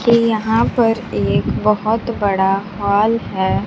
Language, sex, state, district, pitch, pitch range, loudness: Hindi, female, Bihar, Kaimur, 215 Hz, 200-230 Hz, -17 LUFS